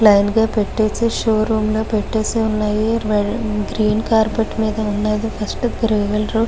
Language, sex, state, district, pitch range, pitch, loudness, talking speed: Telugu, female, Andhra Pradesh, Guntur, 210-225 Hz, 215 Hz, -18 LUFS, 150 wpm